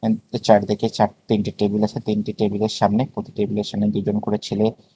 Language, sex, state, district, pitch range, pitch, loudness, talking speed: Bengali, male, Tripura, West Tripura, 105-110 Hz, 105 Hz, -21 LUFS, 170 wpm